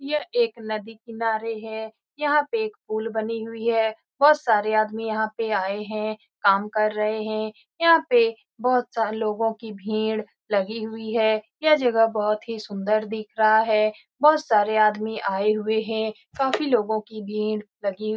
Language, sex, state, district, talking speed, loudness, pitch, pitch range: Hindi, female, Bihar, Saran, 180 wpm, -23 LUFS, 220 Hz, 215-230 Hz